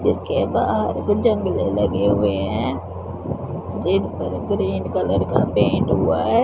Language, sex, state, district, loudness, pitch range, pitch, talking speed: Hindi, female, Punjab, Pathankot, -21 LUFS, 95-130 Hz, 100 Hz, 130 wpm